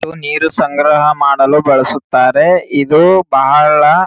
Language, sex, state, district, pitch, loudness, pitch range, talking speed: Kannada, male, Karnataka, Gulbarga, 150 Hz, -10 LUFS, 140-155 Hz, 90 wpm